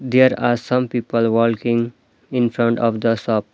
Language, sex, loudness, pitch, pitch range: English, male, -19 LUFS, 120 Hz, 115-125 Hz